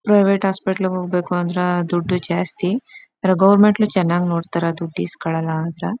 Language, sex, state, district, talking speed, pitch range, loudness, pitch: Kannada, female, Karnataka, Chamarajanagar, 140 wpm, 170-195 Hz, -19 LUFS, 180 Hz